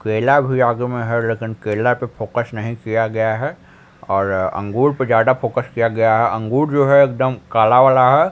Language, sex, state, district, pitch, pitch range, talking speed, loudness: Hindi, male, Bihar, Patna, 115 Hz, 110-130 Hz, 200 wpm, -17 LUFS